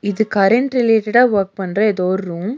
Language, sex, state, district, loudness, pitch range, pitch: Tamil, female, Tamil Nadu, Nilgiris, -16 LUFS, 195-225 Hz, 210 Hz